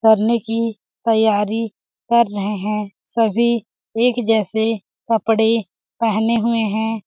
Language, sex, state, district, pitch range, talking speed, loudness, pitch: Hindi, female, Chhattisgarh, Balrampur, 215-230 Hz, 110 wpm, -19 LUFS, 225 Hz